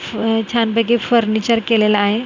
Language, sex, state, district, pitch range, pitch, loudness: Marathi, female, Maharashtra, Mumbai Suburban, 215-235 Hz, 225 Hz, -16 LUFS